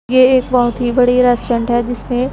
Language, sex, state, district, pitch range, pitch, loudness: Hindi, female, Punjab, Pathankot, 240-255 Hz, 245 Hz, -14 LUFS